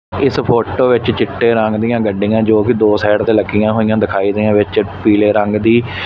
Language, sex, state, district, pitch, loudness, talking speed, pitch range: Punjabi, male, Punjab, Fazilka, 105 Hz, -13 LUFS, 210 wpm, 105-115 Hz